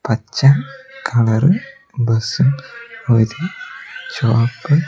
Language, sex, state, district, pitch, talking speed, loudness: Malayalam, male, Kerala, Kozhikode, 140 Hz, 60 wpm, -17 LUFS